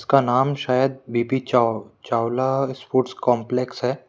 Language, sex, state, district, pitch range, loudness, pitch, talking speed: Hindi, male, Madhya Pradesh, Bhopal, 120-130 Hz, -22 LUFS, 125 Hz, 130 wpm